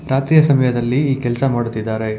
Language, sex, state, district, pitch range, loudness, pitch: Kannada, male, Karnataka, Bangalore, 120-135 Hz, -16 LUFS, 130 Hz